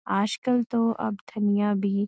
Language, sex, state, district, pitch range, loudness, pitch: Hindi, female, Uttarakhand, Uttarkashi, 200-230 Hz, -25 LUFS, 205 Hz